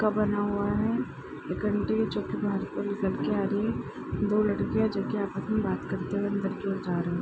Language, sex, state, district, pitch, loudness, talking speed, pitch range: Hindi, female, Bihar, Araria, 205 Hz, -29 LUFS, 275 wpm, 195-210 Hz